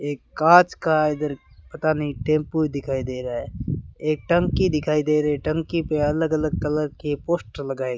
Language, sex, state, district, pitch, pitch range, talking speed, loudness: Hindi, male, Rajasthan, Bikaner, 150 Hz, 145-155 Hz, 195 wpm, -22 LUFS